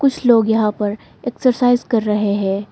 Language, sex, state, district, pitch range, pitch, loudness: Hindi, female, Arunachal Pradesh, Lower Dibang Valley, 205-245 Hz, 220 Hz, -17 LUFS